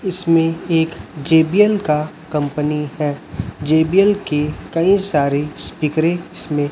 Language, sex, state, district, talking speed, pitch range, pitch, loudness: Hindi, male, Chhattisgarh, Raipur, 105 wpm, 150-170 Hz, 155 Hz, -17 LUFS